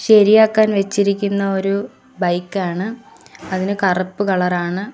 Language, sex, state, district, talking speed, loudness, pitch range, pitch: Malayalam, female, Kerala, Kollam, 95 wpm, -17 LUFS, 185-205 Hz, 195 Hz